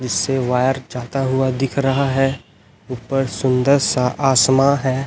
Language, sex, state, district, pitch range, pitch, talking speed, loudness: Hindi, male, Chhattisgarh, Raipur, 125-135 Hz, 130 Hz, 140 wpm, -17 LUFS